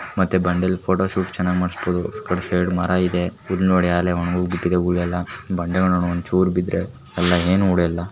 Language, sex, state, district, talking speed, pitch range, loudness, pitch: Kannada, female, Karnataka, Mysore, 120 wpm, 90-95 Hz, -20 LUFS, 90 Hz